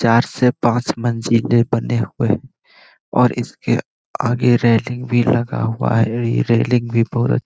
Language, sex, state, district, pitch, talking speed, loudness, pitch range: Hindi, male, Bihar, Jamui, 120 Hz, 160 wpm, -17 LUFS, 115-120 Hz